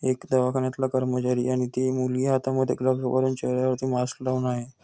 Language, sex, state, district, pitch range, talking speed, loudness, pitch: Marathi, male, Maharashtra, Nagpur, 125-130 Hz, 160 wpm, -25 LUFS, 130 Hz